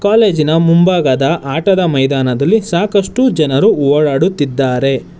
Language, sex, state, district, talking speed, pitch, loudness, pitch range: Kannada, male, Karnataka, Bangalore, 80 wpm, 160 Hz, -12 LUFS, 135-190 Hz